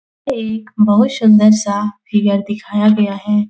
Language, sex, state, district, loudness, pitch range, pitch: Hindi, female, Bihar, Jahanabad, -14 LUFS, 205-215 Hz, 210 Hz